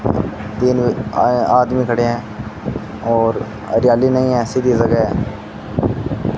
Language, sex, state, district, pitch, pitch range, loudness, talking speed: Hindi, male, Rajasthan, Bikaner, 120 Hz, 110-125 Hz, -17 LUFS, 105 wpm